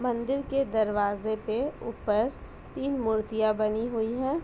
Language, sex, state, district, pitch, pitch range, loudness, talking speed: Hindi, female, Uttar Pradesh, Etah, 225 Hz, 215-265 Hz, -29 LUFS, 135 wpm